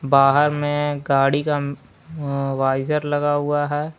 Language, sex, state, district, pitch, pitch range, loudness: Hindi, male, Jharkhand, Palamu, 145 Hz, 140-145 Hz, -20 LUFS